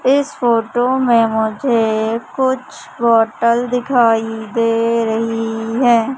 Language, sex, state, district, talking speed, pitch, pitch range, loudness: Hindi, female, Madhya Pradesh, Umaria, 95 wpm, 230 Hz, 225-245 Hz, -16 LUFS